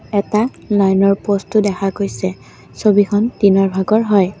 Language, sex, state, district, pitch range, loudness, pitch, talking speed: Assamese, female, Assam, Kamrup Metropolitan, 195-210 Hz, -15 LUFS, 200 Hz, 135 wpm